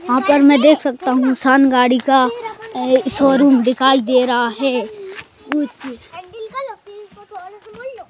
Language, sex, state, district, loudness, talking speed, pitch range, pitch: Hindi, male, Madhya Pradesh, Bhopal, -14 LUFS, 105 wpm, 255-375 Hz, 275 Hz